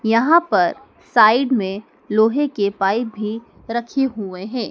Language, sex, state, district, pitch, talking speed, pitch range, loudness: Hindi, female, Madhya Pradesh, Dhar, 225 Hz, 140 wpm, 210-250 Hz, -18 LUFS